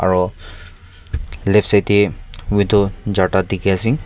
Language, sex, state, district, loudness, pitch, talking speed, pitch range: Nagamese, male, Nagaland, Kohima, -16 LUFS, 95 Hz, 120 wpm, 90-100 Hz